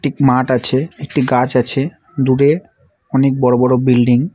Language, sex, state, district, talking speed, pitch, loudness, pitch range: Bengali, male, West Bengal, Alipurduar, 165 wpm, 130 Hz, -15 LUFS, 125-140 Hz